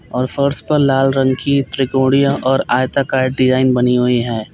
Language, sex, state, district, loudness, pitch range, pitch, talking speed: Hindi, male, Uttar Pradesh, Lalitpur, -15 LUFS, 130-140 Hz, 130 Hz, 170 wpm